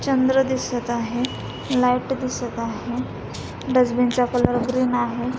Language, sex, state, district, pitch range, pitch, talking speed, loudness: Marathi, female, Maharashtra, Dhule, 240-255 Hz, 250 Hz, 125 wpm, -22 LUFS